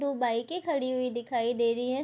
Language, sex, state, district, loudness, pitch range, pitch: Hindi, female, Bihar, Madhepura, -30 LUFS, 240-275 Hz, 250 Hz